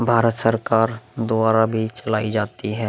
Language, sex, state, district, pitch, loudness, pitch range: Hindi, male, Bihar, Vaishali, 110 Hz, -20 LUFS, 110-115 Hz